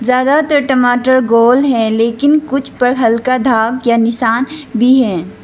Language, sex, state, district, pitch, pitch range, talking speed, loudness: Hindi, female, Arunachal Pradesh, Lower Dibang Valley, 250 Hz, 230-265 Hz, 145 wpm, -12 LUFS